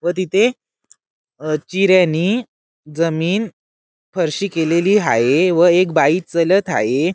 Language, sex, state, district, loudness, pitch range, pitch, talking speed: Marathi, male, Maharashtra, Sindhudurg, -16 LUFS, 155-190 Hz, 170 Hz, 110 wpm